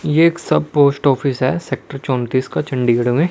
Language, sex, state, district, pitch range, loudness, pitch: Hindi, male, Chandigarh, Chandigarh, 130-150 Hz, -17 LUFS, 135 Hz